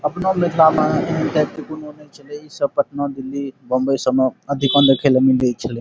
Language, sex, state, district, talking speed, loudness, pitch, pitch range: Maithili, male, Bihar, Saharsa, 155 wpm, -18 LUFS, 140 Hz, 130-150 Hz